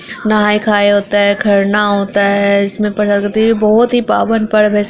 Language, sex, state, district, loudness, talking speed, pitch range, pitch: Hindi, female, Bihar, Araria, -12 LUFS, 210 wpm, 200-215 Hz, 210 Hz